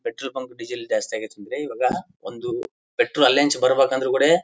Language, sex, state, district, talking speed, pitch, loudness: Kannada, male, Karnataka, Bellary, 190 wpm, 365 Hz, -22 LUFS